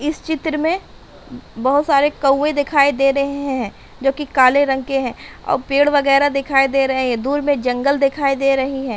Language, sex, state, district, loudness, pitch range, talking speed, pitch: Hindi, female, Uttar Pradesh, Hamirpur, -17 LUFS, 270-285 Hz, 200 wpm, 275 Hz